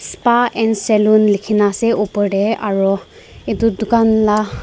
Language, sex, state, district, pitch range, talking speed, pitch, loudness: Nagamese, female, Nagaland, Dimapur, 205-225 Hz, 140 wpm, 215 Hz, -15 LUFS